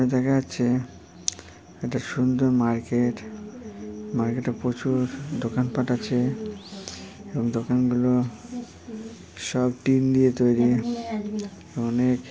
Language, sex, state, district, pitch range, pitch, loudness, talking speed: Bengali, male, West Bengal, Paschim Medinipur, 120-145 Hz, 125 Hz, -25 LUFS, 90 wpm